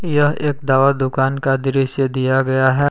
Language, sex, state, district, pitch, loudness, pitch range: Hindi, male, Jharkhand, Palamu, 135 Hz, -17 LUFS, 130-140 Hz